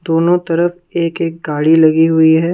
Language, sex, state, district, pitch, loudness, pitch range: Hindi, female, Punjab, Kapurthala, 165 Hz, -13 LUFS, 160-170 Hz